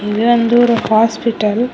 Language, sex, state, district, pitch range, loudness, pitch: Tamil, female, Tamil Nadu, Kanyakumari, 220-240 Hz, -13 LUFS, 230 Hz